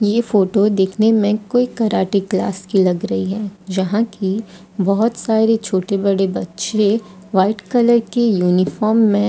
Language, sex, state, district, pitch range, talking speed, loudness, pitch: Hindi, female, Odisha, Sambalpur, 190-220 Hz, 155 wpm, -17 LUFS, 205 Hz